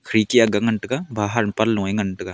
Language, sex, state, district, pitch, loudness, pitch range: Wancho, male, Arunachal Pradesh, Longding, 110 Hz, -20 LUFS, 105-115 Hz